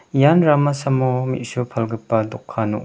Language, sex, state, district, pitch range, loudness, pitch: Garo, male, Meghalaya, West Garo Hills, 115-140 Hz, -19 LUFS, 130 Hz